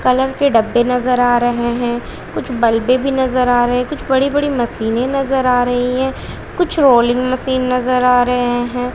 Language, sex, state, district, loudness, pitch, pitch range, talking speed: Hindi, female, Bihar, West Champaran, -15 LUFS, 250 Hz, 245-260 Hz, 190 wpm